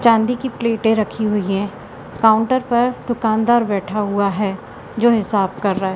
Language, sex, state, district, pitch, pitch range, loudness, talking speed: Hindi, female, Madhya Pradesh, Katni, 220 Hz, 200-235 Hz, -18 LUFS, 170 wpm